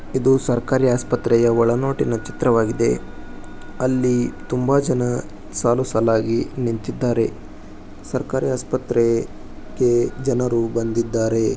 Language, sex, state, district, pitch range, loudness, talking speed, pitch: Kannada, male, Karnataka, Bijapur, 115-130 Hz, -20 LUFS, 85 wpm, 120 Hz